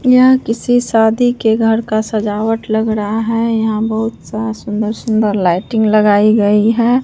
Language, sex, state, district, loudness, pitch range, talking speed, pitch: Hindi, female, Bihar, Katihar, -14 LUFS, 215-230 Hz, 160 wpm, 220 Hz